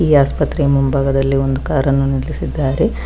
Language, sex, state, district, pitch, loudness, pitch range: Kannada, female, Karnataka, Bangalore, 135 Hz, -16 LUFS, 135-145 Hz